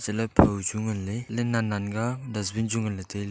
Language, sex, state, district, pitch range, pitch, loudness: Wancho, male, Arunachal Pradesh, Longding, 100-115 Hz, 110 Hz, -27 LUFS